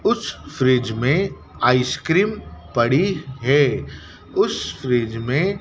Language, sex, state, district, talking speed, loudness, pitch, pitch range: Hindi, male, Madhya Pradesh, Dhar, 95 wpm, -20 LUFS, 130 Hz, 120-150 Hz